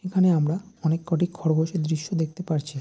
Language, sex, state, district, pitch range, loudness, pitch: Bengali, male, West Bengal, Dakshin Dinajpur, 160-180 Hz, -25 LUFS, 165 Hz